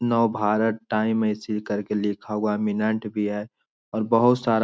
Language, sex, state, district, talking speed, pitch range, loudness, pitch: Hindi, male, Bihar, Jamui, 195 wpm, 105-110 Hz, -24 LUFS, 110 Hz